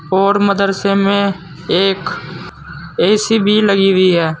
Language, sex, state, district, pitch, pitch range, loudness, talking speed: Hindi, male, Uttar Pradesh, Saharanpur, 195 Hz, 185-200 Hz, -13 LUFS, 120 wpm